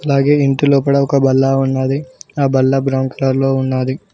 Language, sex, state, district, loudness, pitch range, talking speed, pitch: Telugu, male, Telangana, Mahabubabad, -15 LUFS, 130-140 Hz, 175 wpm, 135 Hz